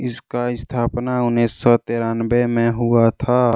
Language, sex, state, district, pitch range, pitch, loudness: Hindi, male, Jharkhand, Deoghar, 115-120 Hz, 120 Hz, -19 LUFS